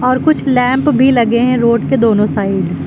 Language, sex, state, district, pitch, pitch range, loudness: Hindi, female, Uttar Pradesh, Lucknow, 250 Hz, 230-260 Hz, -12 LUFS